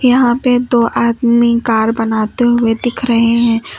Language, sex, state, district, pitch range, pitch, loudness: Hindi, female, Uttar Pradesh, Lucknow, 230-245 Hz, 235 Hz, -13 LUFS